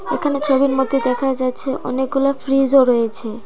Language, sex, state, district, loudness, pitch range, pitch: Bengali, female, Tripura, Dhalai, -17 LUFS, 250-275 Hz, 265 Hz